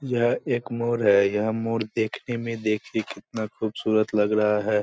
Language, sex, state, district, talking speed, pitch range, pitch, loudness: Hindi, male, Bihar, Purnia, 175 wpm, 105-115 Hz, 110 Hz, -25 LUFS